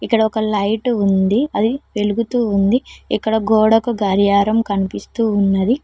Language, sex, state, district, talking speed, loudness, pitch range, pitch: Telugu, female, Telangana, Mahabubabad, 125 wpm, -17 LUFS, 200-230 Hz, 220 Hz